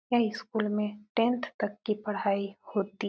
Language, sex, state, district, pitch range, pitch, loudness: Hindi, female, Uttar Pradesh, Etah, 205-230 Hz, 210 Hz, -31 LUFS